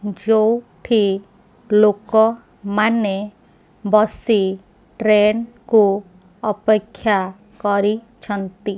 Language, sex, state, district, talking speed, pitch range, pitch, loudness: Odia, female, Odisha, Khordha, 55 wpm, 200-220 Hz, 210 Hz, -18 LUFS